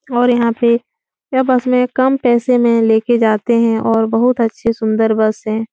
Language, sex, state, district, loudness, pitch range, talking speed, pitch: Hindi, female, Uttar Pradesh, Etah, -14 LUFS, 225-245 Hz, 190 wpm, 235 Hz